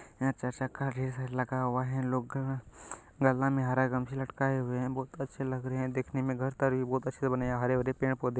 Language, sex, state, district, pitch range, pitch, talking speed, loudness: Hindi, male, Bihar, Begusarai, 130-135 Hz, 130 Hz, 215 wpm, -32 LUFS